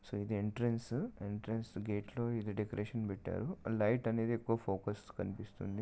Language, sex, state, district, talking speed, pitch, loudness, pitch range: Telugu, male, Telangana, Nalgonda, 145 wpm, 105 Hz, -39 LUFS, 105-115 Hz